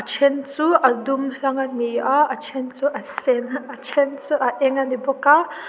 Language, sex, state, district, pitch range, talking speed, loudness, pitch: Mizo, female, Mizoram, Aizawl, 260-285 Hz, 220 wpm, -20 LUFS, 275 Hz